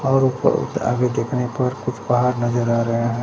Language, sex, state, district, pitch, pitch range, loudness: Hindi, male, Bihar, Katihar, 125 Hz, 120-125 Hz, -20 LUFS